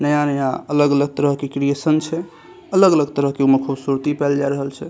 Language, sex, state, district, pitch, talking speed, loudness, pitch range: Maithili, male, Bihar, Saharsa, 140 Hz, 195 wpm, -18 LUFS, 140-150 Hz